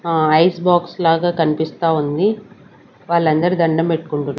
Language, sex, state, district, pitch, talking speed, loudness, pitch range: Telugu, female, Andhra Pradesh, Sri Satya Sai, 165 Hz, 125 wpm, -17 LUFS, 155-175 Hz